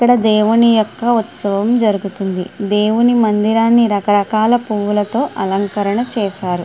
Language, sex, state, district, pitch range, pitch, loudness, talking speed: Telugu, female, Andhra Pradesh, Guntur, 205-230 Hz, 215 Hz, -15 LUFS, 100 wpm